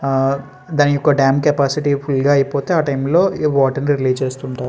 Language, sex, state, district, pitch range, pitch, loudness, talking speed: Telugu, male, Andhra Pradesh, Srikakulam, 135-145 Hz, 140 Hz, -16 LUFS, 205 wpm